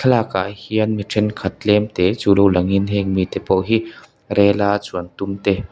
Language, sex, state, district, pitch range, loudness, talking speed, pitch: Mizo, male, Mizoram, Aizawl, 95-105 Hz, -18 LUFS, 190 wpm, 100 Hz